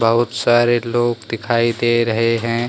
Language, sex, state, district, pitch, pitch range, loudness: Hindi, male, Jharkhand, Deoghar, 120 Hz, 115-120 Hz, -17 LUFS